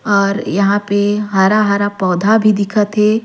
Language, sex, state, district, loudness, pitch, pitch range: Surgujia, female, Chhattisgarh, Sarguja, -14 LUFS, 205 Hz, 200-210 Hz